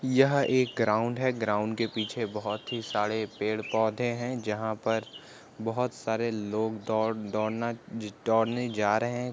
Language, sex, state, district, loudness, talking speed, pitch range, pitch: Hindi, male, Uttar Pradesh, Jyotiba Phule Nagar, -29 LUFS, 155 wpm, 110-120 Hz, 110 Hz